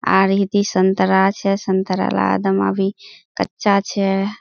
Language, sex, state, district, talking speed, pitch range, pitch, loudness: Hindi, female, Bihar, Kishanganj, 150 wpm, 185-200 Hz, 195 Hz, -18 LUFS